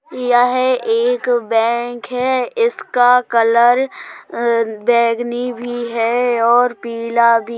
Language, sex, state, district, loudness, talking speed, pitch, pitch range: Hindi, female, Uttar Pradesh, Jalaun, -16 LUFS, 105 wpm, 240 Hz, 235-250 Hz